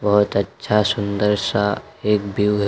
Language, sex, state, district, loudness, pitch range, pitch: Hindi, male, Uttar Pradesh, Lucknow, -20 LUFS, 100-105 Hz, 105 Hz